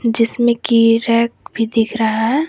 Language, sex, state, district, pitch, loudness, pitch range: Hindi, female, Jharkhand, Garhwa, 230 Hz, -15 LUFS, 225-235 Hz